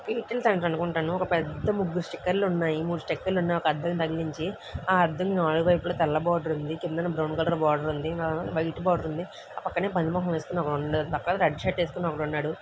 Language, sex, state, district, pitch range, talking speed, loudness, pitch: Telugu, female, Andhra Pradesh, Visakhapatnam, 160-180 Hz, 200 wpm, -27 LUFS, 170 Hz